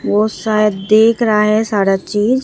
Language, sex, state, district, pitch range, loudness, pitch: Hindi, female, Bihar, Katihar, 205-220 Hz, -14 LUFS, 215 Hz